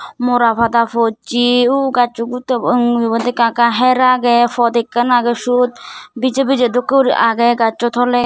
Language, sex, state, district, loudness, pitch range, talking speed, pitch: Chakma, female, Tripura, Dhalai, -14 LUFS, 235-250 Hz, 175 wpm, 245 Hz